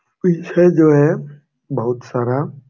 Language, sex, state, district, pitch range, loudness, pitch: Hindi, male, Jharkhand, Jamtara, 130-170 Hz, -16 LUFS, 145 Hz